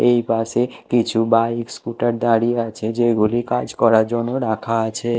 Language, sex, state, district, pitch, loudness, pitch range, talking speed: Bengali, male, Odisha, Malkangiri, 115 Hz, -19 LUFS, 115-120 Hz, 150 wpm